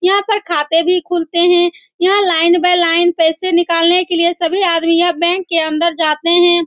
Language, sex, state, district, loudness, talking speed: Hindi, female, Bihar, Saran, -13 LUFS, 200 wpm